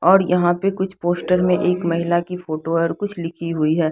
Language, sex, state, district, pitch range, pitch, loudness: Hindi, female, Bihar, Patna, 165-180 Hz, 175 Hz, -20 LUFS